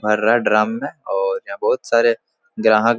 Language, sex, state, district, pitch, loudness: Hindi, male, Bihar, Supaul, 120 Hz, -18 LUFS